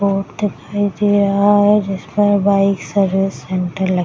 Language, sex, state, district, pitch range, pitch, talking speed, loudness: Hindi, female, Bihar, Madhepura, 190-205 Hz, 200 Hz, 165 wpm, -16 LUFS